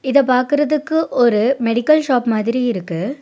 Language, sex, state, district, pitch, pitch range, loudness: Tamil, female, Tamil Nadu, Nilgiris, 255 Hz, 230-290 Hz, -16 LUFS